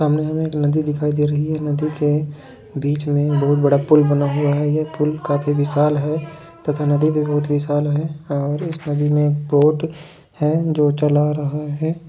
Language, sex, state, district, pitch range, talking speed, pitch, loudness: Hindi, male, Jharkhand, Jamtara, 145-155 Hz, 200 wpm, 150 Hz, -19 LUFS